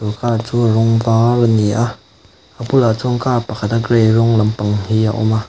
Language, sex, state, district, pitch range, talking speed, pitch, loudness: Mizo, male, Mizoram, Aizawl, 110-120 Hz, 240 wpm, 115 Hz, -15 LUFS